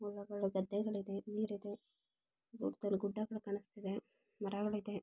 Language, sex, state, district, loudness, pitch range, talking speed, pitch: Kannada, female, Karnataka, Shimoga, -41 LUFS, 200-210 Hz, 70 wpm, 205 Hz